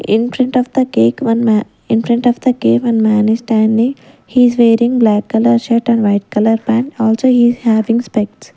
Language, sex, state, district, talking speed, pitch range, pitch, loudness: English, female, Punjab, Kapurthala, 215 wpm, 220-240 Hz, 230 Hz, -13 LUFS